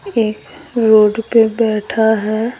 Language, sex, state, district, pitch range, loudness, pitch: Hindi, female, Bihar, Patna, 215-230 Hz, -14 LUFS, 220 Hz